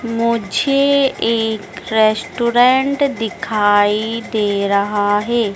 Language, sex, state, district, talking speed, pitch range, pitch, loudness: Hindi, female, Madhya Pradesh, Dhar, 75 wpm, 205-240 Hz, 225 Hz, -16 LUFS